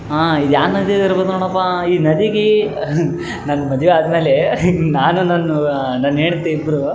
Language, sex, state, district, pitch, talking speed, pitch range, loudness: Kannada, male, Karnataka, Raichur, 165 Hz, 95 wpm, 150-185 Hz, -15 LUFS